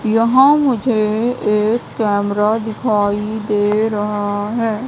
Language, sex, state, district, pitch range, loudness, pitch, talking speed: Hindi, female, Madhya Pradesh, Katni, 210-230 Hz, -16 LUFS, 215 Hz, 100 wpm